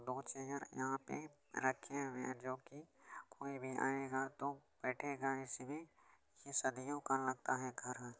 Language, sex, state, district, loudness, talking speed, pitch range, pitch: Maithili, male, Bihar, Supaul, -43 LUFS, 170 wpm, 130-140 Hz, 135 Hz